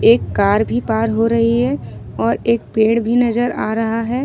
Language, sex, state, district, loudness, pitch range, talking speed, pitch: Hindi, female, Jharkhand, Ranchi, -17 LUFS, 220-235 Hz, 225 wpm, 225 Hz